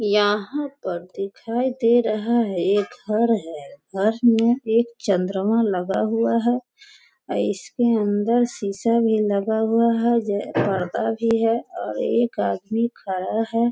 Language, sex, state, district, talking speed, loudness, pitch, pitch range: Hindi, female, Bihar, Sitamarhi, 145 wpm, -22 LUFS, 225 Hz, 205-235 Hz